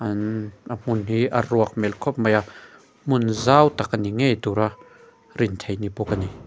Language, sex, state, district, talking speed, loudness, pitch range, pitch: Mizo, male, Mizoram, Aizawl, 205 wpm, -22 LUFS, 105-120 Hz, 110 Hz